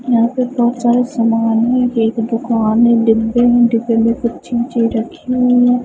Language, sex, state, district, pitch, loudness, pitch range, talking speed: Hindi, female, Punjab, Fazilka, 235 Hz, -14 LUFS, 230-245 Hz, 185 wpm